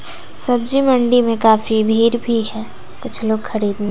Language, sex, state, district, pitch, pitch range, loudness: Hindi, female, Bihar, West Champaran, 225 Hz, 220-245 Hz, -16 LUFS